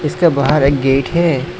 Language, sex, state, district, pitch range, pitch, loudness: Hindi, male, Assam, Hailakandi, 135-170 Hz, 150 Hz, -14 LUFS